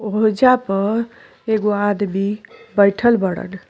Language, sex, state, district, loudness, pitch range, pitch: Bhojpuri, female, Uttar Pradesh, Deoria, -18 LUFS, 200-225 Hz, 210 Hz